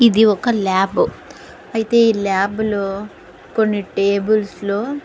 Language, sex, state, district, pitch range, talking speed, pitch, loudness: Telugu, female, Andhra Pradesh, Guntur, 200-220 Hz, 130 wpm, 210 Hz, -17 LUFS